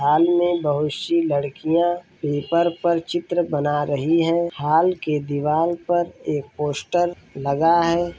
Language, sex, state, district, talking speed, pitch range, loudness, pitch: Hindi, male, Bihar, Saran, 130 wpm, 145-175 Hz, -21 LUFS, 165 Hz